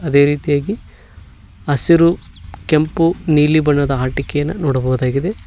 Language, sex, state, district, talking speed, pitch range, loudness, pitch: Kannada, male, Karnataka, Koppal, 90 wpm, 135-155 Hz, -16 LUFS, 145 Hz